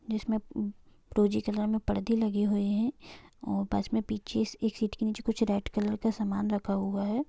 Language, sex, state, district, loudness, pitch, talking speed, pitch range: Hindi, female, Bihar, Sitamarhi, -31 LUFS, 210 Hz, 200 wpm, 200-220 Hz